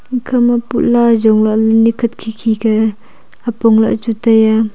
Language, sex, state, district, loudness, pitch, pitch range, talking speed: Wancho, female, Arunachal Pradesh, Longding, -13 LUFS, 225 Hz, 220-235 Hz, 165 wpm